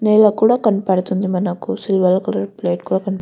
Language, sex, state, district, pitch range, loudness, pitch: Telugu, female, Andhra Pradesh, Guntur, 185-210 Hz, -17 LUFS, 190 Hz